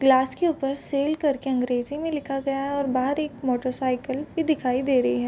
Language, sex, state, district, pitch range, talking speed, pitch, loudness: Hindi, female, Bihar, Vaishali, 255-290 Hz, 240 wpm, 270 Hz, -25 LUFS